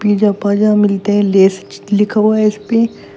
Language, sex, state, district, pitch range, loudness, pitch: Hindi, female, Uttar Pradesh, Shamli, 205-215 Hz, -13 LUFS, 210 Hz